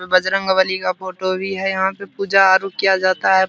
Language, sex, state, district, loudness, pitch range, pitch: Hindi, male, Bihar, Supaul, -17 LUFS, 185-195 Hz, 190 Hz